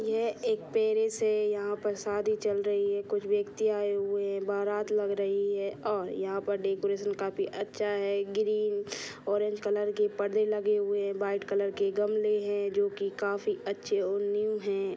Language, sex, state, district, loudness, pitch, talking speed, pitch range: Hindi, female, Bihar, Sitamarhi, -30 LUFS, 205 Hz, 190 wpm, 200-215 Hz